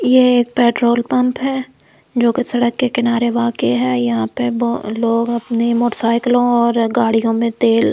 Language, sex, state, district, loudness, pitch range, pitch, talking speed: Hindi, female, Delhi, New Delhi, -16 LUFS, 230-245 Hz, 235 Hz, 160 wpm